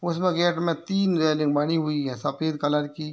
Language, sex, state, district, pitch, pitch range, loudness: Hindi, male, Bihar, Muzaffarpur, 155 Hz, 150-170 Hz, -24 LUFS